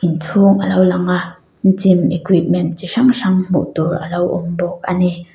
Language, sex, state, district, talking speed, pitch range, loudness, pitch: Mizo, female, Mizoram, Aizawl, 170 wpm, 175-185 Hz, -15 LUFS, 180 Hz